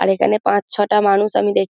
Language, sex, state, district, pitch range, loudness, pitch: Bengali, female, West Bengal, Dakshin Dinajpur, 145-210 Hz, -16 LUFS, 200 Hz